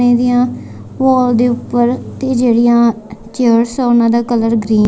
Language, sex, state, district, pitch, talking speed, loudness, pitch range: Punjabi, female, Punjab, Kapurthala, 240 Hz, 160 wpm, -13 LUFS, 230-245 Hz